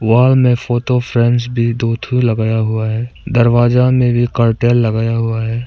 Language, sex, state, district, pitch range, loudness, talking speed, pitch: Hindi, male, Arunachal Pradesh, Papum Pare, 115-120 Hz, -14 LUFS, 180 wpm, 120 Hz